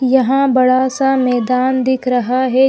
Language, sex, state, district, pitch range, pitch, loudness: Hindi, female, Chhattisgarh, Bilaspur, 255-265 Hz, 260 Hz, -14 LUFS